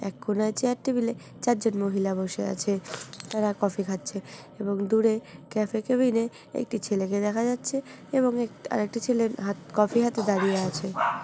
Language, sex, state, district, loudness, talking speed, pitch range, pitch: Bengali, female, West Bengal, North 24 Parganas, -27 LUFS, 165 wpm, 200-235 Hz, 215 Hz